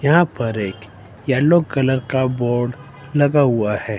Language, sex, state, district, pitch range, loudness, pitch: Hindi, male, Himachal Pradesh, Shimla, 110-145 Hz, -18 LUFS, 130 Hz